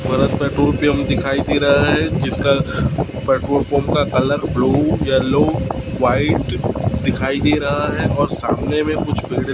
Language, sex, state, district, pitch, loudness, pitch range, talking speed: Hindi, male, Chhattisgarh, Raipur, 140 Hz, -17 LUFS, 130-145 Hz, 155 wpm